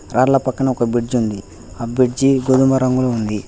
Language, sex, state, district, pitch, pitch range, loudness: Telugu, male, Telangana, Hyderabad, 125 Hz, 115-130 Hz, -17 LUFS